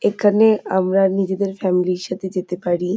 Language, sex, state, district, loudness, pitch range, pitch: Bengali, female, West Bengal, North 24 Parganas, -19 LUFS, 180-200 Hz, 190 Hz